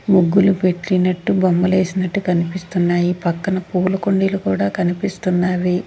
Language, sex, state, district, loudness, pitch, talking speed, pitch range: Telugu, female, Andhra Pradesh, Sri Satya Sai, -18 LUFS, 185 Hz, 100 wpm, 175-190 Hz